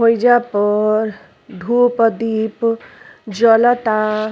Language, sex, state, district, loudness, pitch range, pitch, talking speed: Bhojpuri, female, Uttar Pradesh, Ghazipur, -15 LUFS, 215-235 Hz, 225 Hz, 70 wpm